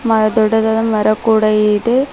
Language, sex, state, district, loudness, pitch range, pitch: Kannada, female, Karnataka, Bidar, -13 LUFS, 215-225 Hz, 220 Hz